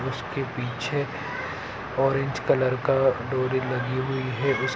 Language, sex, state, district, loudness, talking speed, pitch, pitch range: Hindi, male, Bihar, Saran, -26 LUFS, 125 wpm, 130 Hz, 130-135 Hz